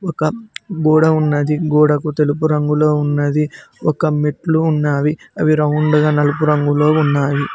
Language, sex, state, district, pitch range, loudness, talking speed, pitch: Telugu, male, Telangana, Mahabubabad, 150-155 Hz, -16 LUFS, 125 wpm, 150 Hz